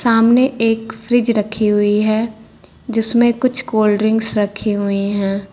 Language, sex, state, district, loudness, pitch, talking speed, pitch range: Hindi, female, Uttar Pradesh, Lucknow, -16 LUFS, 220 Hz, 140 wpm, 210-235 Hz